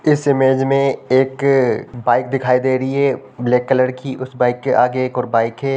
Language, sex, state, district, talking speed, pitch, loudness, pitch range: Hindi, male, Bihar, Samastipur, 210 wpm, 130 Hz, -17 LUFS, 125-135 Hz